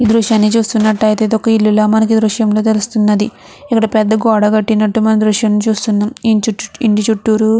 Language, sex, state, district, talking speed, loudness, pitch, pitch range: Telugu, female, Andhra Pradesh, Chittoor, 180 wpm, -13 LUFS, 220 Hz, 215-220 Hz